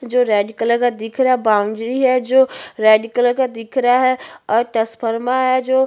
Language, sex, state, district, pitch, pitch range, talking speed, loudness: Hindi, female, Chhattisgarh, Bastar, 245 Hz, 225-255 Hz, 205 wpm, -17 LUFS